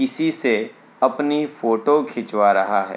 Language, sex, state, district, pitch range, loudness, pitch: Hindi, male, Uttar Pradesh, Hamirpur, 115-150 Hz, -20 LUFS, 145 Hz